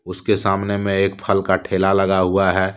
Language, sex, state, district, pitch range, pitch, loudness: Hindi, male, Jharkhand, Deoghar, 95-100 Hz, 95 Hz, -18 LUFS